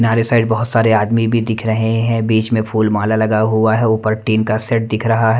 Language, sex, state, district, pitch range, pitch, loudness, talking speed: Hindi, male, Delhi, New Delhi, 110-115 Hz, 110 Hz, -15 LUFS, 255 wpm